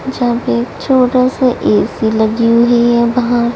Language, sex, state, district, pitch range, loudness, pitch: Hindi, female, Delhi, New Delhi, 235-250 Hz, -12 LUFS, 240 Hz